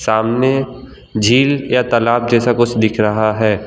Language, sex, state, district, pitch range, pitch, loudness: Hindi, male, Gujarat, Valsad, 110-130 Hz, 120 Hz, -14 LUFS